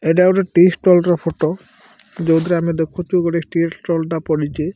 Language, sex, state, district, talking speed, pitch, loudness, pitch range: Odia, male, Odisha, Malkangiri, 165 wpm, 170 Hz, -17 LUFS, 165-180 Hz